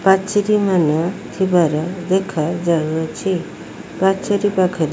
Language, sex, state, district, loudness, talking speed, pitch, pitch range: Odia, female, Odisha, Malkangiri, -18 LUFS, 85 wpm, 185 Hz, 165-195 Hz